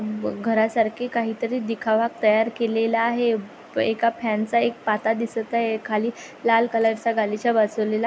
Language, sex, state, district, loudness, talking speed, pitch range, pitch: Marathi, female, Maharashtra, Pune, -23 LUFS, 165 wpm, 220-235 Hz, 225 Hz